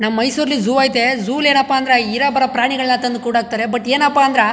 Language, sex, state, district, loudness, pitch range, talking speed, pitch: Kannada, male, Karnataka, Chamarajanagar, -15 LUFS, 235-270 Hz, 200 wpm, 255 Hz